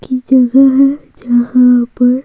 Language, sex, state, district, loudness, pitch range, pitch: Hindi, female, Bihar, Patna, -10 LUFS, 245-265 Hz, 255 Hz